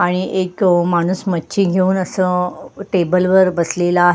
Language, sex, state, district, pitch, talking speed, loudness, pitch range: Marathi, female, Maharashtra, Sindhudurg, 180 Hz, 130 wpm, -16 LUFS, 175-190 Hz